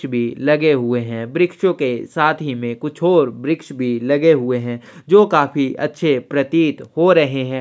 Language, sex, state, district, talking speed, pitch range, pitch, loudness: Hindi, male, Chhattisgarh, Sukma, 180 wpm, 125-160 Hz, 145 Hz, -17 LUFS